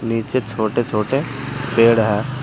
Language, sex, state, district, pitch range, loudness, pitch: Hindi, male, Uttar Pradesh, Saharanpur, 110-135 Hz, -18 LUFS, 115 Hz